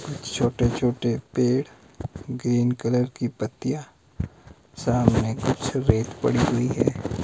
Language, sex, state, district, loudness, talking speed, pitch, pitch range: Hindi, male, Himachal Pradesh, Shimla, -24 LUFS, 110 wpm, 125 Hz, 115-130 Hz